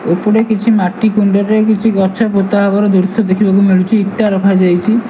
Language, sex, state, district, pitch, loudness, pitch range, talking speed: Odia, male, Odisha, Malkangiri, 205 Hz, -12 LUFS, 195-220 Hz, 165 wpm